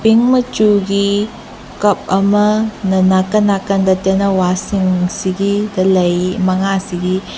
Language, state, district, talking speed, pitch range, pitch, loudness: Manipuri, Manipur, Imphal West, 80 wpm, 185-205 Hz, 195 Hz, -14 LUFS